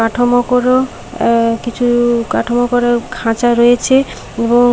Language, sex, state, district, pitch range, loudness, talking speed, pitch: Bengali, female, West Bengal, Paschim Medinipur, 235-245 Hz, -13 LUFS, 115 wpm, 240 Hz